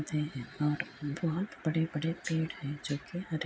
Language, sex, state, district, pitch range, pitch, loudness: Hindi, female, Bihar, Muzaffarpur, 150-165 Hz, 155 Hz, -34 LUFS